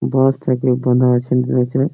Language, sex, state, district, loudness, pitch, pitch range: Bengali, male, West Bengal, Malda, -16 LUFS, 125 Hz, 125-135 Hz